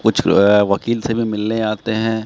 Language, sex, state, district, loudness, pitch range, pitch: Hindi, male, Bihar, Katihar, -17 LUFS, 105-115 Hz, 110 Hz